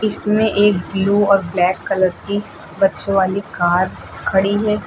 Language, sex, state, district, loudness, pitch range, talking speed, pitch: Hindi, female, Uttar Pradesh, Lucknow, -17 LUFS, 185-205 Hz, 125 wpm, 195 Hz